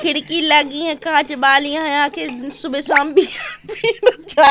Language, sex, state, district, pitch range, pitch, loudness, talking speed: Hindi, female, Madhya Pradesh, Katni, 285-330 Hz, 295 Hz, -16 LUFS, 135 wpm